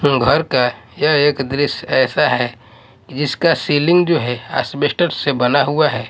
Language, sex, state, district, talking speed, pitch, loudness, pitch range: Hindi, male, Odisha, Malkangiri, 165 wpm, 145 Hz, -16 LUFS, 125-155 Hz